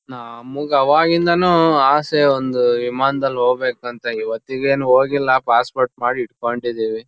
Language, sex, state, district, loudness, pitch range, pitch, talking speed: Kannada, male, Karnataka, Shimoga, -17 LUFS, 120-140 Hz, 130 Hz, 120 wpm